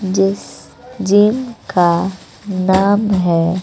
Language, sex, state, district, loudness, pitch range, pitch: Hindi, female, Bihar, West Champaran, -15 LUFS, 185-205 Hz, 195 Hz